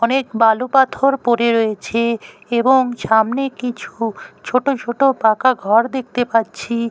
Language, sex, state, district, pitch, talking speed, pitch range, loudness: Bengali, male, West Bengal, Kolkata, 240 Hz, 120 wpm, 225-260 Hz, -17 LUFS